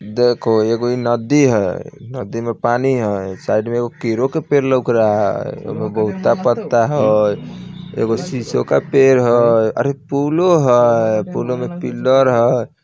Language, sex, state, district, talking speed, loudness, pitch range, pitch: Bajjika, male, Bihar, Vaishali, 160 wpm, -16 LUFS, 110-130 Hz, 120 Hz